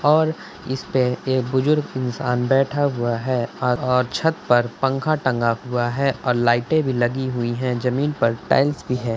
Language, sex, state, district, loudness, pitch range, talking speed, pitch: Hindi, male, Uttar Pradesh, Budaun, -21 LUFS, 120-140 Hz, 185 wpm, 130 Hz